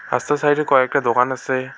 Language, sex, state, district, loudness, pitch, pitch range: Bengali, male, West Bengal, Alipurduar, -18 LUFS, 130 Hz, 130-145 Hz